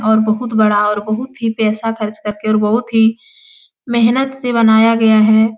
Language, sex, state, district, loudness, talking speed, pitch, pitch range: Hindi, female, Uttar Pradesh, Etah, -14 LUFS, 180 wpm, 220 Hz, 215-235 Hz